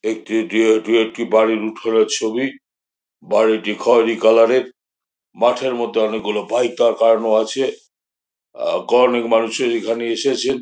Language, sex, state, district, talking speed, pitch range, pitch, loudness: Bengali, male, West Bengal, Jhargram, 140 wpm, 110-125 Hz, 115 Hz, -17 LUFS